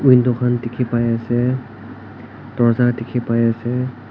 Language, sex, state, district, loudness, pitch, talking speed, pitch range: Nagamese, male, Nagaland, Kohima, -18 LUFS, 120 Hz, 130 wpm, 115-125 Hz